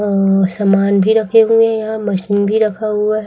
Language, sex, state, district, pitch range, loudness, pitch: Hindi, female, Chhattisgarh, Raipur, 200-220 Hz, -14 LUFS, 210 Hz